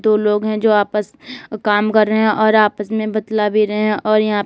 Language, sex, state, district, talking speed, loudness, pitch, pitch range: Hindi, female, Uttar Pradesh, Lalitpur, 240 wpm, -16 LUFS, 215 Hz, 210-215 Hz